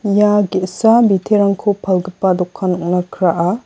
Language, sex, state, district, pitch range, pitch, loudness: Garo, female, Meghalaya, West Garo Hills, 180-205 Hz, 190 Hz, -15 LUFS